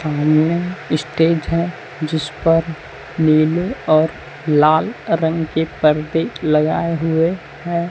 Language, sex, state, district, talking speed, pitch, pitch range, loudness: Hindi, male, Chhattisgarh, Raipur, 100 wpm, 160 Hz, 155-165 Hz, -17 LUFS